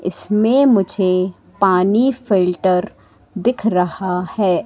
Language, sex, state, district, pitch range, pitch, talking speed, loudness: Hindi, female, Madhya Pradesh, Katni, 180-220 Hz, 190 Hz, 90 wpm, -17 LUFS